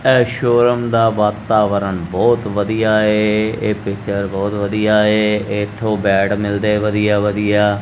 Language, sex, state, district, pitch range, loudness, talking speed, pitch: Punjabi, male, Punjab, Kapurthala, 105-110 Hz, -16 LUFS, 130 wpm, 105 Hz